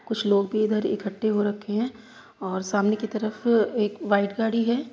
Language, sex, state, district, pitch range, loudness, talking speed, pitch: Hindi, female, Uttar Pradesh, Hamirpur, 205-225 Hz, -25 LUFS, 195 wpm, 215 Hz